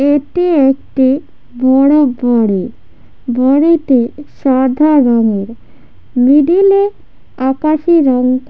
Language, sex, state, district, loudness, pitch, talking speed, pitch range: Bengali, female, West Bengal, Jhargram, -12 LUFS, 270 Hz, 90 wpm, 250-305 Hz